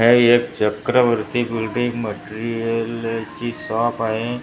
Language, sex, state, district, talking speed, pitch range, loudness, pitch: Marathi, male, Maharashtra, Gondia, 110 wpm, 115-120 Hz, -20 LUFS, 115 Hz